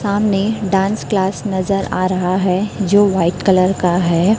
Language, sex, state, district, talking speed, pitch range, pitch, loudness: Hindi, female, Chhattisgarh, Raipur, 165 wpm, 185-200 Hz, 195 Hz, -16 LUFS